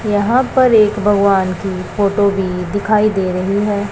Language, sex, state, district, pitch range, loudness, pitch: Hindi, male, Punjab, Pathankot, 190-210 Hz, -15 LUFS, 200 Hz